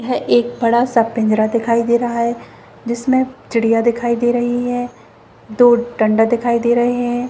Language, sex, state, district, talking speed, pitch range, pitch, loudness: Hindi, female, Jharkhand, Jamtara, 165 wpm, 230-240 Hz, 235 Hz, -16 LUFS